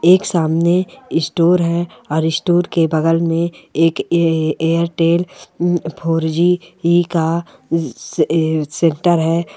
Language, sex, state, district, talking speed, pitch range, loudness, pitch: Hindi, female, Bihar, Sitamarhi, 140 wpm, 160-175 Hz, -16 LUFS, 165 Hz